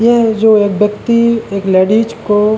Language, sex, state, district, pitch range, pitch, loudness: Hindi, male, Uttarakhand, Uttarkashi, 205-230 Hz, 215 Hz, -12 LUFS